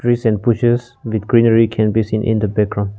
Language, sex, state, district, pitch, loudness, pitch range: English, male, Nagaland, Kohima, 110 Hz, -16 LUFS, 110-120 Hz